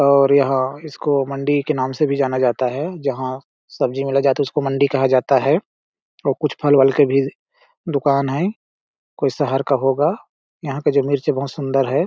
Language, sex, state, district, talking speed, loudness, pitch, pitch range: Hindi, male, Chhattisgarh, Balrampur, 170 wpm, -19 LUFS, 140 Hz, 135-145 Hz